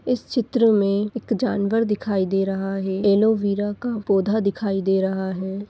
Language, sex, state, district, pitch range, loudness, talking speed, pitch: Hindi, female, Bihar, Purnia, 195-220 Hz, -22 LUFS, 170 wpm, 200 Hz